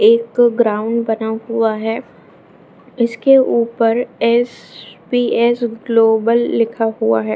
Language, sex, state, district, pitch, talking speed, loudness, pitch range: Hindi, female, Bihar, Jamui, 230 Hz, 100 wpm, -16 LUFS, 225-235 Hz